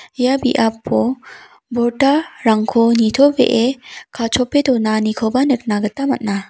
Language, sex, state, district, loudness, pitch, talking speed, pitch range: Garo, female, Meghalaya, South Garo Hills, -16 LUFS, 240 Hz, 90 wpm, 220-265 Hz